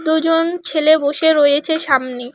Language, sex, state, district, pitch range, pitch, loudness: Bengali, female, West Bengal, Alipurduar, 285-320 Hz, 310 Hz, -14 LUFS